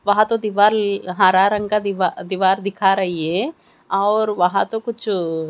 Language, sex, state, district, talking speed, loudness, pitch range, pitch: Hindi, female, Haryana, Charkhi Dadri, 165 wpm, -18 LUFS, 185-210 Hz, 200 Hz